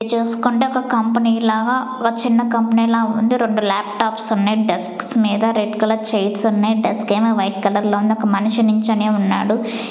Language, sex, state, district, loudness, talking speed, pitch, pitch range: Telugu, female, Andhra Pradesh, Sri Satya Sai, -17 LUFS, 170 wpm, 220 Hz, 215-230 Hz